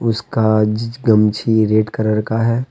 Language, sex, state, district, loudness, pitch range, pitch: Hindi, male, Jharkhand, Deoghar, -16 LUFS, 110-115 Hz, 110 Hz